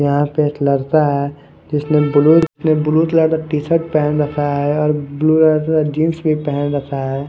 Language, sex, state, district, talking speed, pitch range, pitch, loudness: Hindi, male, Haryana, Charkhi Dadri, 190 wpm, 145-155 Hz, 150 Hz, -16 LUFS